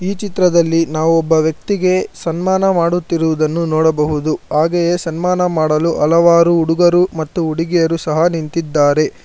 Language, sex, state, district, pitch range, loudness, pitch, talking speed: Kannada, male, Karnataka, Bangalore, 160-175 Hz, -14 LUFS, 165 Hz, 105 wpm